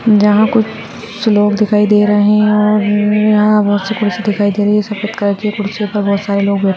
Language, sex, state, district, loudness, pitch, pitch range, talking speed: Hindi, female, Rajasthan, Churu, -13 LUFS, 210 Hz, 205-210 Hz, 240 wpm